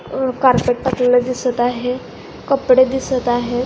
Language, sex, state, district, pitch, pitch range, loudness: Marathi, female, Maharashtra, Aurangabad, 250 Hz, 245-260 Hz, -16 LUFS